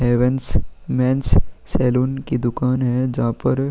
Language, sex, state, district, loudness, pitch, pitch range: Hindi, male, Uttar Pradesh, Jalaun, -19 LUFS, 125 Hz, 120-130 Hz